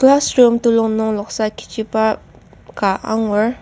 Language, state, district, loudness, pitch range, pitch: Ao, Nagaland, Kohima, -17 LUFS, 220-240 Hz, 220 Hz